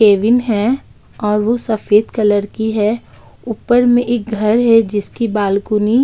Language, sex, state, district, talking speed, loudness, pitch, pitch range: Hindi, female, Uttar Pradesh, Budaun, 160 wpm, -15 LUFS, 220 Hz, 210-235 Hz